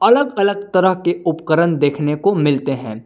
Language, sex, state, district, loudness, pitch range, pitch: Hindi, male, Jharkhand, Palamu, -17 LUFS, 145-200 Hz, 165 Hz